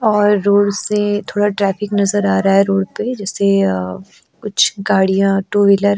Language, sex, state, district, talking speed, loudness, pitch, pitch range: Hindi, female, Goa, North and South Goa, 180 wpm, -15 LUFS, 200 Hz, 195-205 Hz